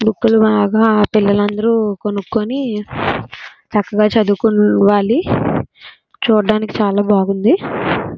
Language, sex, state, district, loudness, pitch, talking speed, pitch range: Telugu, female, Andhra Pradesh, Srikakulam, -15 LUFS, 210 Hz, 80 wpm, 205-220 Hz